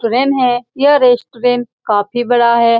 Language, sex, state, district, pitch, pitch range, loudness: Hindi, female, Bihar, Saran, 245 Hz, 235-250 Hz, -13 LUFS